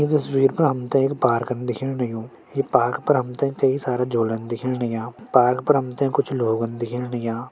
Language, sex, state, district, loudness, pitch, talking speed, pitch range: Hindi, male, Uttarakhand, Tehri Garhwal, -22 LUFS, 125 Hz, 190 wpm, 120-135 Hz